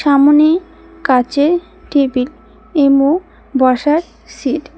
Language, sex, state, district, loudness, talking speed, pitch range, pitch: Bengali, female, West Bengal, Cooch Behar, -14 LUFS, 90 wpm, 265-325 Hz, 285 Hz